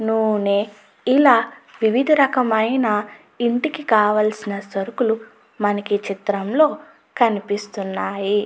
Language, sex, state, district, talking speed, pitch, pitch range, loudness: Telugu, female, Andhra Pradesh, Chittoor, 70 wpm, 215 Hz, 205-240 Hz, -19 LUFS